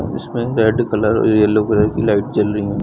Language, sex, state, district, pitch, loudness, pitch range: Hindi, male, Chhattisgarh, Bilaspur, 105 Hz, -16 LUFS, 105-110 Hz